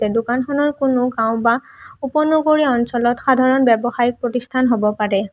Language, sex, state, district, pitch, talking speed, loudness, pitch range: Assamese, female, Assam, Hailakandi, 245 Hz, 135 wpm, -17 LUFS, 230-265 Hz